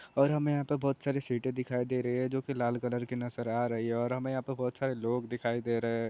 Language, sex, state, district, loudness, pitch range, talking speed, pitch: Hindi, male, Telangana, Nalgonda, -32 LUFS, 120-135 Hz, 305 wpm, 125 Hz